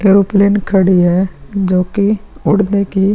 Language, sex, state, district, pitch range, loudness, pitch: Hindi, female, Bihar, Vaishali, 185-200 Hz, -13 LUFS, 195 Hz